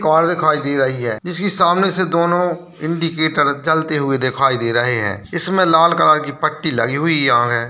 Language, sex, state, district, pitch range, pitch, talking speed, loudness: Hindi, male, Bihar, Jamui, 135-170 Hz, 155 Hz, 200 wpm, -16 LUFS